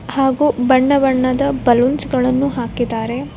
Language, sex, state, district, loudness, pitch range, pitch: Kannada, female, Karnataka, Koppal, -16 LUFS, 245-275 Hz, 260 Hz